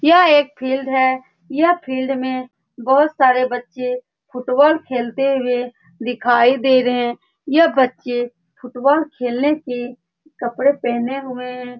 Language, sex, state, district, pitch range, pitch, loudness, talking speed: Hindi, female, Bihar, Saran, 245-275 Hz, 255 Hz, -18 LUFS, 135 wpm